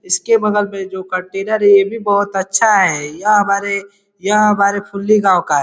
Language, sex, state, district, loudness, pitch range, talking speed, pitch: Hindi, male, Uttar Pradesh, Ghazipur, -15 LUFS, 190-210 Hz, 200 wpm, 200 Hz